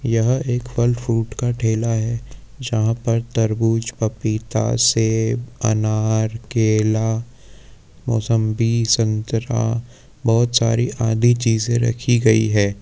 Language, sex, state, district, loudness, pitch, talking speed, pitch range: Hindi, male, Bihar, Gopalganj, -19 LUFS, 115 Hz, 105 wpm, 110-120 Hz